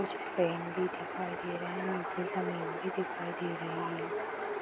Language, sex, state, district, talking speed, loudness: Hindi, female, Bihar, Saran, 180 wpm, -36 LUFS